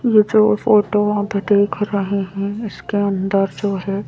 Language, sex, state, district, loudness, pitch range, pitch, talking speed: Hindi, female, Madhya Pradesh, Bhopal, -18 LUFS, 195-210 Hz, 205 Hz, 160 wpm